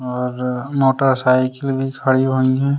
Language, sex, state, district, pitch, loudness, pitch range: Hindi, male, Uttar Pradesh, Jalaun, 130 Hz, -18 LUFS, 130-135 Hz